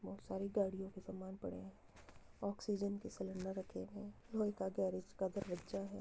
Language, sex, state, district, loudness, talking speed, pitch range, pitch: Hindi, female, Uttar Pradesh, Muzaffarnagar, -44 LUFS, 190 wpm, 185-200 Hz, 190 Hz